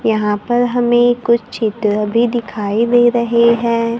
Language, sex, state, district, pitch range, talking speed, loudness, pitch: Hindi, female, Maharashtra, Gondia, 220-240 Hz, 150 wpm, -15 LUFS, 235 Hz